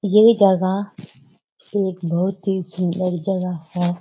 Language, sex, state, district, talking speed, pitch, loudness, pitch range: Hindi, female, Uttarakhand, Uttarkashi, 120 wpm, 185 Hz, -20 LUFS, 175-195 Hz